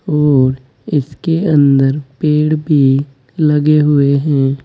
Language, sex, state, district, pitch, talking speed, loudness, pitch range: Hindi, male, Uttar Pradesh, Saharanpur, 145 Hz, 105 wpm, -13 LUFS, 135-150 Hz